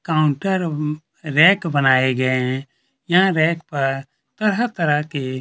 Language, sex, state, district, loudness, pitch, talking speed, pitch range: Hindi, male, Chhattisgarh, Kabirdham, -19 LUFS, 155 Hz, 110 wpm, 135-175 Hz